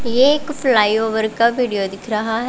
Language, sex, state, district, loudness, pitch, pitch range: Hindi, female, Punjab, Pathankot, -17 LUFS, 225 Hz, 215-250 Hz